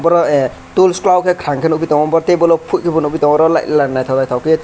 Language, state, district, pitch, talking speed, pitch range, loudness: Kokborok, Tripura, West Tripura, 160 Hz, 230 wpm, 145-170 Hz, -13 LUFS